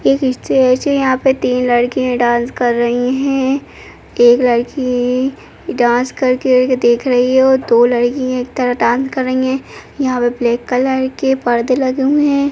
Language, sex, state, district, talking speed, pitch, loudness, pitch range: Kumaoni, female, Uttarakhand, Uttarkashi, 175 wpm, 255 Hz, -14 LUFS, 245-265 Hz